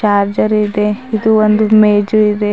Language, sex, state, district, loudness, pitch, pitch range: Kannada, female, Karnataka, Bidar, -12 LUFS, 210 Hz, 210-215 Hz